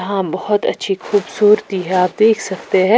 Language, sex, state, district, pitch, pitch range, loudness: Hindi, female, Chhattisgarh, Raipur, 195 Hz, 185-210 Hz, -16 LUFS